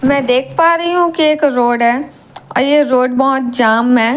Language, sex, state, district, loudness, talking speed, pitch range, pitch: Hindi, female, Bihar, Katihar, -13 LUFS, 230 wpm, 245-295 Hz, 265 Hz